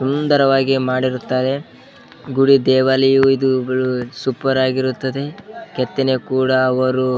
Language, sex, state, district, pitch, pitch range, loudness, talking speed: Kannada, male, Karnataka, Bellary, 130 Hz, 130-135 Hz, -17 LUFS, 90 wpm